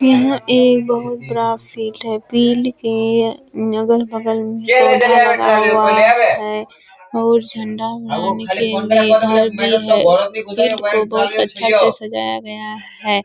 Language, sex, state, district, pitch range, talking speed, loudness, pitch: Hindi, female, Bihar, Kishanganj, 215-235 Hz, 105 wpm, -15 LUFS, 225 Hz